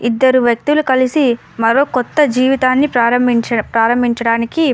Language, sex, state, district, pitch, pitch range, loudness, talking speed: Telugu, female, Andhra Pradesh, Anantapur, 245 Hz, 235-265 Hz, -14 LUFS, 115 wpm